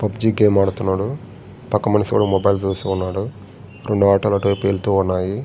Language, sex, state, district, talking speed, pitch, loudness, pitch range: Telugu, male, Andhra Pradesh, Srikakulam, 155 wpm, 100 Hz, -18 LUFS, 95-105 Hz